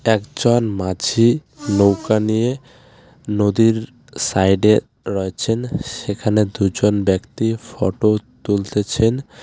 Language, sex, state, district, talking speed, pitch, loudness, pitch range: Bengali, male, West Bengal, Alipurduar, 75 wpm, 110 Hz, -18 LUFS, 100-120 Hz